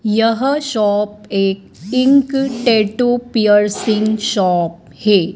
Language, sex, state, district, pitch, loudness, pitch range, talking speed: Hindi, female, Madhya Pradesh, Dhar, 215 Hz, -15 LUFS, 200-245 Hz, 90 wpm